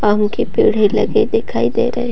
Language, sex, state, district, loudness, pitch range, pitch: Hindi, female, Bihar, Gopalganj, -16 LUFS, 210-240 Hz, 215 Hz